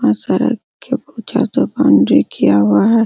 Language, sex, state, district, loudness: Hindi, female, Bihar, Araria, -14 LUFS